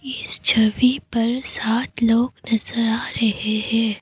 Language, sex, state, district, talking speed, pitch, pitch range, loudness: Hindi, female, Assam, Kamrup Metropolitan, 135 wpm, 230 Hz, 220-240 Hz, -19 LUFS